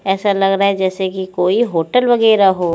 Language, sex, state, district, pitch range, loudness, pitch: Hindi, female, Chandigarh, Chandigarh, 185-205 Hz, -15 LUFS, 195 Hz